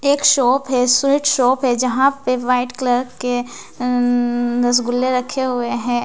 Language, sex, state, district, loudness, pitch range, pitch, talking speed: Hindi, female, Bihar, West Champaran, -17 LUFS, 245-260 Hz, 250 Hz, 160 wpm